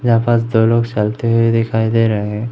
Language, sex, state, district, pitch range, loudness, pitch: Hindi, male, Madhya Pradesh, Umaria, 110-115 Hz, -15 LUFS, 115 Hz